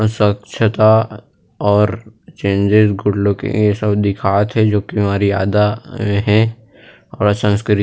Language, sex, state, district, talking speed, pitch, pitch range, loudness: Chhattisgarhi, male, Chhattisgarh, Rajnandgaon, 115 wpm, 105 Hz, 100-110 Hz, -15 LUFS